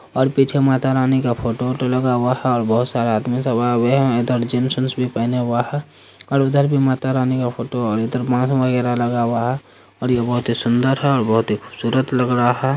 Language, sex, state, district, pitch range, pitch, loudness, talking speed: Hindi, male, Bihar, Saharsa, 120-130 Hz, 125 Hz, -18 LUFS, 235 wpm